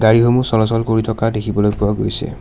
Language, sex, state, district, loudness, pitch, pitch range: Assamese, male, Assam, Kamrup Metropolitan, -16 LUFS, 110 Hz, 105-115 Hz